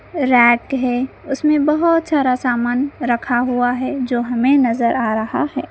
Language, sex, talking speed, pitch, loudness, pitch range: Hindi, female, 155 wpm, 255 Hz, -17 LUFS, 240-280 Hz